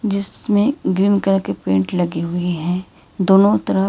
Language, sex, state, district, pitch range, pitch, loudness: Hindi, female, Karnataka, Bangalore, 170-200 Hz, 185 Hz, -18 LUFS